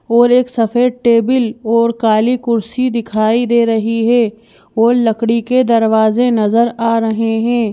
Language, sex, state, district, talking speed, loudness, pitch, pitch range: Hindi, female, Madhya Pradesh, Bhopal, 145 wpm, -13 LUFS, 230 Hz, 225-240 Hz